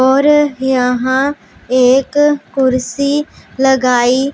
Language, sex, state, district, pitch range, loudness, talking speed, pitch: Hindi, female, Punjab, Pathankot, 255-285 Hz, -13 LUFS, 70 wpm, 265 Hz